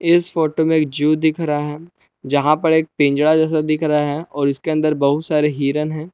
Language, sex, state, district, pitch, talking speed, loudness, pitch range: Hindi, male, Jharkhand, Palamu, 155 Hz, 225 wpm, -17 LUFS, 150-160 Hz